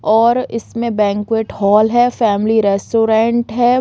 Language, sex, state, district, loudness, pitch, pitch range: Hindi, female, Bihar, East Champaran, -14 LUFS, 225 Hz, 215-235 Hz